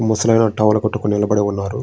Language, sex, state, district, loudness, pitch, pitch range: Telugu, male, Andhra Pradesh, Srikakulam, -17 LUFS, 105 Hz, 105-110 Hz